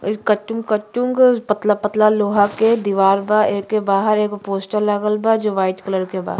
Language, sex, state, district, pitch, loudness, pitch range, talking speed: Bhojpuri, female, Uttar Pradesh, Gorakhpur, 210 Hz, -17 LUFS, 200-215 Hz, 185 wpm